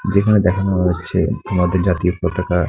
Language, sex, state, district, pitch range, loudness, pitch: Bengali, male, West Bengal, Kolkata, 90-95 Hz, -17 LUFS, 90 Hz